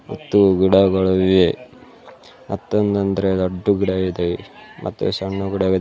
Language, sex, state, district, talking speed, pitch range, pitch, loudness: Kannada, male, Karnataka, Bidar, 115 wpm, 95-100 Hz, 95 Hz, -18 LUFS